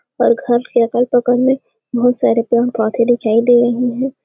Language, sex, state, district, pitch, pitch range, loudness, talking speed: Hindi, female, Chhattisgarh, Sarguja, 245 Hz, 235-245 Hz, -15 LUFS, 170 wpm